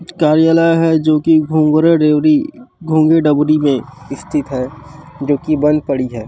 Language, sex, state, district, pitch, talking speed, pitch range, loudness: Chhattisgarhi, female, Chhattisgarh, Rajnandgaon, 155 Hz, 155 wpm, 145-165 Hz, -13 LUFS